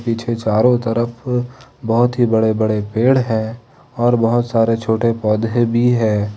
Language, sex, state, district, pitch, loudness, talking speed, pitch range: Hindi, male, Jharkhand, Ranchi, 115 Hz, -17 LUFS, 150 wpm, 110-120 Hz